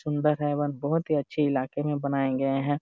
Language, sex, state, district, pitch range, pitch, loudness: Hindi, male, Jharkhand, Jamtara, 140-150 Hz, 145 Hz, -27 LUFS